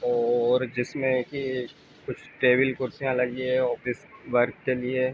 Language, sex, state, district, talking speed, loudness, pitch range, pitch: Hindi, male, Uttar Pradesh, Ghazipur, 140 wpm, -26 LUFS, 125-130 Hz, 125 Hz